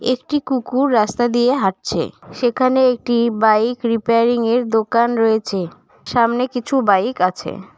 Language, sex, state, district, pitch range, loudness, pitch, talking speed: Bengali, female, West Bengal, Cooch Behar, 220-250 Hz, -17 LUFS, 235 Hz, 115 wpm